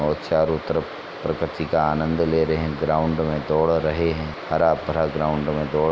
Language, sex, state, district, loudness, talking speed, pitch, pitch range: Hindi, male, Uttar Pradesh, Etah, -22 LUFS, 190 wpm, 80 Hz, 75-80 Hz